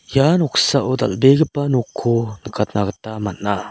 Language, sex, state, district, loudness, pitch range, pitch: Garo, male, Meghalaya, South Garo Hills, -18 LUFS, 105-135 Hz, 120 Hz